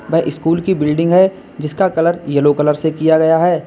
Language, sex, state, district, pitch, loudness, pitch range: Hindi, male, Uttar Pradesh, Lalitpur, 160 Hz, -14 LUFS, 150-175 Hz